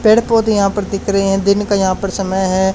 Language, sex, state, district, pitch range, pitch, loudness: Hindi, male, Haryana, Charkhi Dadri, 190-205 Hz, 195 Hz, -15 LUFS